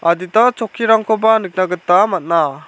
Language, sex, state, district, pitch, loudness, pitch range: Garo, male, Meghalaya, South Garo Hills, 190 Hz, -15 LUFS, 175-220 Hz